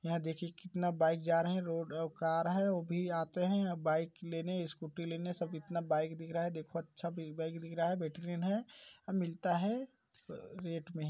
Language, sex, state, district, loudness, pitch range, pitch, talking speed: Hindi, male, Chhattisgarh, Balrampur, -37 LUFS, 165-180 Hz, 170 Hz, 200 wpm